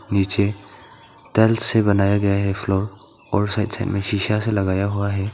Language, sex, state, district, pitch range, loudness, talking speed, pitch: Hindi, male, Arunachal Pradesh, Papum Pare, 100-105 Hz, -19 LUFS, 190 wpm, 100 Hz